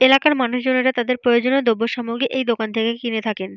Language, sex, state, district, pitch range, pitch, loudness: Bengali, female, Jharkhand, Jamtara, 230-255 Hz, 245 Hz, -19 LUFS